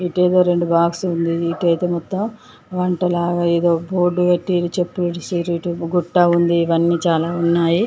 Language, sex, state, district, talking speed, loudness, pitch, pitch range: Telugu, female, Andhra Pradesh, Chittoor, 155 wpm, -18 LUFS, 175 Hz, 170-180 Hz